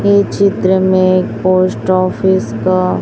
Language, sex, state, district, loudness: Hindi, female, Chhattisgarh, Raipur, -13 LUFS